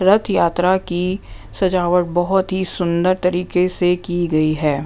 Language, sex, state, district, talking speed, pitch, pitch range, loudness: Hindi, female, Bihar, West Champaran, 150 wpm, 180 Hz, 175-185 Hz, -18 LUFS